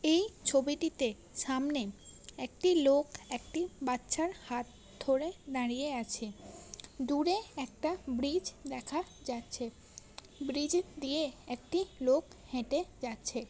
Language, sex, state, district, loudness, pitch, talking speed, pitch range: Bengali, female, West Bengal, Kolkata, -35 LUFS, 275 Hz, 100 wpm, 250-320 Hz